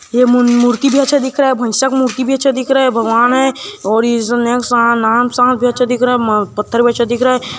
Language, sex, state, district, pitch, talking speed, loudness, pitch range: Hindi, male, Chhattisgarh, Kabirdham, 245 Hz, 255 wpm, -13 LUFS, 235-260 Hz